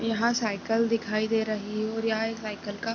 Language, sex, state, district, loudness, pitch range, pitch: Hindi, female, Chhattisgarh, Raigarh, -28 LUFS, 215-225 Hz, 220 Hz